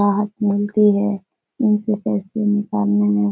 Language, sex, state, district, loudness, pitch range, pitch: Hindi, female, Bihar, Jahanabad, -19 LUFS, 195-210 Hz, 205 Hz